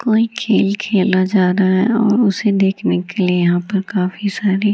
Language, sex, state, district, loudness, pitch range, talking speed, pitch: Hindi, female, Bihar, Gaya, -16 LUFS, 185-210 Hz, 200 wpm, 195 Hz